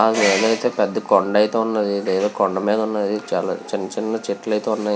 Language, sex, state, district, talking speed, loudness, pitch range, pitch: Telugu, male, Andhra Pradesh, Visakhapatnam, 145 wpm, -20 LUFS, 100-110 Hz, 105 Hz